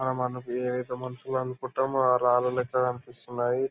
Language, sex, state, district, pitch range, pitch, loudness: Telugu, male, Andhra Pradesh, Anantapur, 125-130 Hz, 125 Hz, -28 LUFS